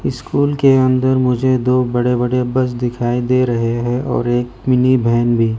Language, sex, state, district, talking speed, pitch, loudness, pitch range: Hindi, male, Arunachal Pradesh, Lower Dibang Valley, 180 wpm, 125 Hz, -16 LUFS, 120-130 Hz